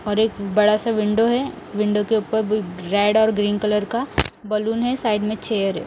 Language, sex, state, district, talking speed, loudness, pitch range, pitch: Hindi, male, Odisha, Nuapada, 215 wpm, -20 LUFS, 210-220 Hz, 210 Hz